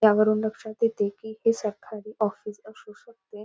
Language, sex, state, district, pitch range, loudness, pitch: Marathi, female, Maharashtra, Nagpur, 210-220 Hz, -26 LUFS, 215 Hz